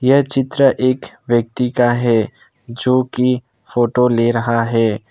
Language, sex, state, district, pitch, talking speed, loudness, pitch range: Hindi, male, Assam, Kamrup Metropolitan, 120 Hz, 140 wpm, -16 LUFS, 115-130 Hz